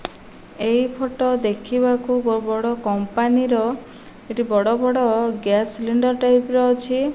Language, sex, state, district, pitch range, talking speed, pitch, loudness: Odia, female, Odisha, Malkangiri, 225-250 Hz, 125 wpm, 240 Hz, -20 LUFS